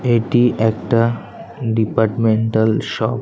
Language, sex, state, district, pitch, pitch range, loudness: Bengali, male, West Bengal, Kolkata, 115 Hz, 110-120 Hz, -17 LUFS